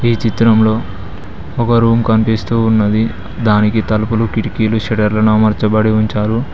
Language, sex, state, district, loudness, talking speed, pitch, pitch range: Telugu, male, Telangana, Mahabubabad, -14 LUFS, 110 wpm, 110 Hz, 105-115 Hz